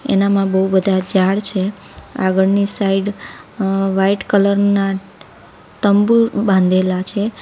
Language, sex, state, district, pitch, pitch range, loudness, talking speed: Gujarati, female, Gujarat, Valsad, 195 Hz, 190-200 Hz, -15 LUFS, 115 wpm